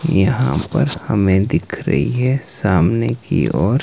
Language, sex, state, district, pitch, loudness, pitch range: Hindi, male, Himachal Pradesh, Shimla, 115 Hz, -17 LUFS, 95-130 Hz